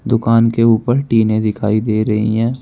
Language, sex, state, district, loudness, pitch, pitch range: Hindi, male, Uttar Pradesh, Saharanpur, -15 LUFS, 110 Hz, 110-115 Hz